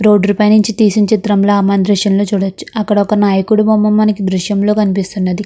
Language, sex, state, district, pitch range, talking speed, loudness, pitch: Telugu, female, Andhra Pradesh, Krishna, 200-215 Hz, 175 wpm, -12 LUFS, 205 Hz